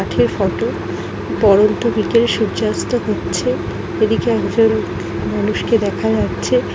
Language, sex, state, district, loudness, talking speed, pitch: Bengali, female, West Bengal, Dakshin Dinajpur, -17 LUFS, 125 wpm, 200 Hz